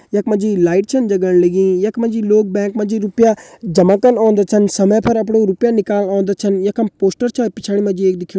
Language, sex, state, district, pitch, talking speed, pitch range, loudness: Hindi, male, Uttarakhand, Uttarkashi, 205 Hz, 245 wpm, 195-220 Hz, -15 LUFS